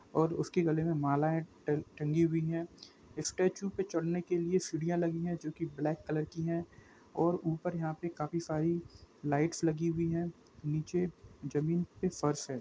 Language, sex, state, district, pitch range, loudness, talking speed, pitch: Hindi, male, Jharkhand, Jamtara, 155-170 Hz, -34 LUFS, 180 wpm, 165 Hz